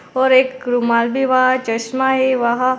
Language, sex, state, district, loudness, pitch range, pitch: Hindi, female, Maharashtra, Aurangabad, -16 LUFS, 240-260 Hz, 255 Hz